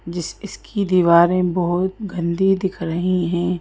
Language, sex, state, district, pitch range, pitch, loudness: Hindi, female, Madhya Pradesh, Bhopal, 170-190 Hz, 180 Hz, -19 LUFS